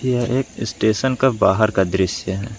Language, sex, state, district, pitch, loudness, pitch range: Hindi, male, Jharkhand, Palamu, 110 Hz, -19 LUFS, 95-130 Hz